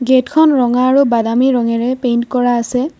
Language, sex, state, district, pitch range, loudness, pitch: Assamese, female, Assam, Kamrup Metropolitan, 240-260 Hz, -13 LUFS, 250 Hz